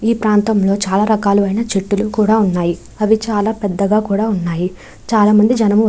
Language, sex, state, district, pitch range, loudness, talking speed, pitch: Telugu, female, Andhra Pradesh, Chittoor, 200-220 Hz, -15 LUFS, 155 wpm, 210 Hz